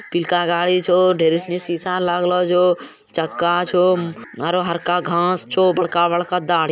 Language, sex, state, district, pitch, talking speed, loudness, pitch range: Maithili, male, Bihar, Bhagalpur, 175 Hz, 145 wpm, -18 LUFS, 175-180 Hz